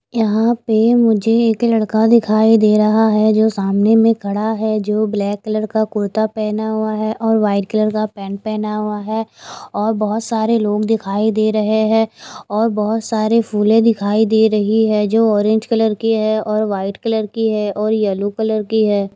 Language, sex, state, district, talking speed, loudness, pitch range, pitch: Hindi, female, Himachal Pradesh, Shimla, 190 wpm, -16 LUFS, 210-220 Hz, 215 Hz